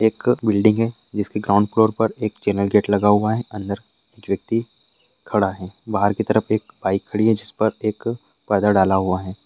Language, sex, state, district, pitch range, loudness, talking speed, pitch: Hindi, male, Bihar, Begusarai, 100-110 Hz, -20 LUFS, 205 wpm, 105 Hz